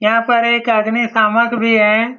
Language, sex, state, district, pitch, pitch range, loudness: Hindi, male, Bihar, Saran, 230 Hz, 220-235 Hz, -13 LUFS